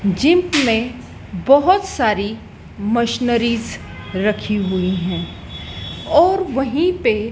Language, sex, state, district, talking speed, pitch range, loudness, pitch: Hindi, female, Madhya Pradesh, Dhar, 100 wpm, 205-300 Hz, -17 LUFS, 235 Hz